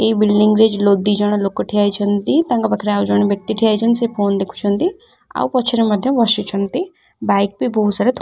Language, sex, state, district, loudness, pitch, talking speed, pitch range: Odia, female, Odisha, Khordha, -16 LUFS, 210 Hz, 205 wpm, 200-235 Hz